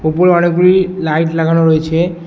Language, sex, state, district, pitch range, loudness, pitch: Bengali, male, West Bengal, Alipurduar, 160-180 Hz, -12 LUFS, 170 Hz